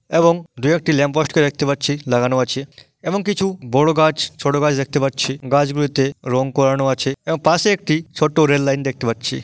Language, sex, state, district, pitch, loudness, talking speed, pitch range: Bengali, male, West Bengal, Dakshin Dinajpur, 145 Hz, -18 LUFS, 185 wpm, 135-155 Hz